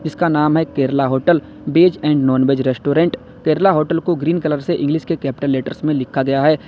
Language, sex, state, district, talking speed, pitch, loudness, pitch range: Hindi, male, Uttar Pradesh, Lalitpur, 215 wpm, 150 Hz, -17 LUFS, 135-165 Hz